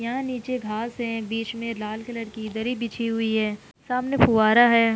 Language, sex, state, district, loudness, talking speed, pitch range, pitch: Hindi, female, Uttar Pradesh, Jalaun, -24 LUFS, 195 wpm, 220-240 Hz, 230 Hz